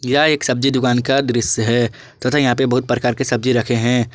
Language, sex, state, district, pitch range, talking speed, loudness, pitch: Hindi, male, Jharkhand, Ranchi, 120-135 Hz, 230 wpm, -17 LUFS, 125 Hz